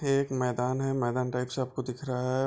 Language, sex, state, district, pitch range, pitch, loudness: Hindi, male, Bihar, Bhagalpur, 125-135 Hz, 130 Hz, -30 LUFS